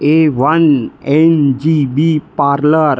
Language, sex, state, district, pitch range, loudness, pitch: Hindi, male, Bihar, East Champaran, 140-160 Hz, -12 LUFS, 150 Hz